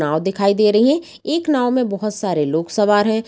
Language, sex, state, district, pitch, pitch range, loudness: Hindi, female, Bihar, Saran, 210 Hz, 195-245 Hz, -17 LUFS